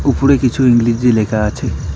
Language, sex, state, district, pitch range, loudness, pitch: Bengali, male, West Bengal, Alipurduar, 105-130 Hz, -13 LUFS, 120 Hz